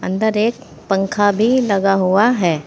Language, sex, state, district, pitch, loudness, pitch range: Hindi, female, Uttar Pradesh, Saharanpur, 200 Hz, -16 LUFS, 185-220 Hz